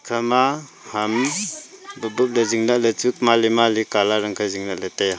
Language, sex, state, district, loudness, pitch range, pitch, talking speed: Wancho, male, Arunachal Pradesh, Longding, -20 LUFS, 105-125 Hz, 115 Hz, 210 wpm